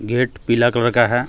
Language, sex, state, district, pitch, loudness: Hindi, male, Jharkhand, Deoghar, 120 Hz, -17 LUFS